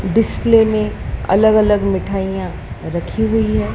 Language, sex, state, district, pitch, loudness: Hindi, male, Madhya Pradesh, Dhar, 195 Hz, -16 LUFS